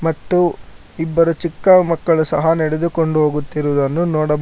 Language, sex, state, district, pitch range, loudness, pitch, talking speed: Kannada, male, Karnataka, Bangalore, 155-170 Hz, -16 LUFS, 160 Hz, 110 wpm